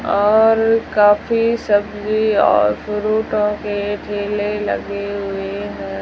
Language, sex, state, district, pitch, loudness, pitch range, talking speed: Hindi, female, Rajasthan, Jaisalmer, 205 Hz, -17 LUFS, 205-215 Hz, 90 wpm